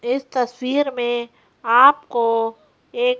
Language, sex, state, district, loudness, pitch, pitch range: Hindi, female, Madhya Pradesh, Bhopal, -19 LUFS, 250 Hz, 235-275 Hz